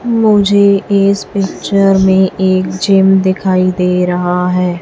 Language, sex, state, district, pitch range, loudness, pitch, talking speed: Hindi, female, Chhattisgarh, Raipur, 185-200 Hz, -11 LUFS, 190 Hz, 125 wpm